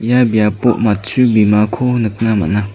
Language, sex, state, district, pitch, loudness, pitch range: Garo, male, Meghalaya, South Garo Hills, 110 Hz, -13 LUFS, 105-120 Hz